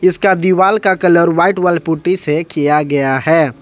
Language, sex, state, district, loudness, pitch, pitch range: Hindi, male, Jharkhand, Ranchi, -13 LUFS, 170 Hz, 150-185 Hz